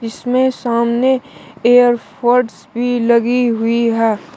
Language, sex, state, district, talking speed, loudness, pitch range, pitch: Hindi, male, Uttar Pradesh, Shamli, 95 wpm, -15 LUFS, 230-245 Hz, 235 Hz